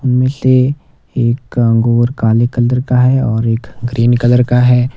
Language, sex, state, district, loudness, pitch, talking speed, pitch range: Hindi, male, Himachal Pradesh, Shimla, -13 LUFS, 120 Hz, 170 wpm, 120-125 Hz